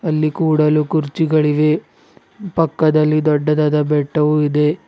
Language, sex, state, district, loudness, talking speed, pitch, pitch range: Kannada, male, Karnataka, Bidar, -16 LUFS, 85 wpm, 155 Hz, 150-155 Hz